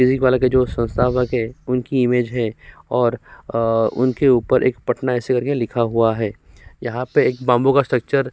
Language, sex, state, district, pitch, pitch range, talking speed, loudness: Hindi, male, Uttar Pradesh, Jyotiba Phule Nagar, 125 Hz, 115-130 Hz, 200 wpm, -19 LUFS